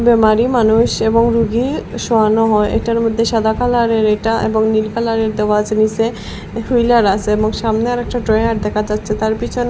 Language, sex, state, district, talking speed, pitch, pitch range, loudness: Bengali, female, Assam, Hailakandi, 180 wpm, 225 Hz, 215-230 Hz, -15 LUFS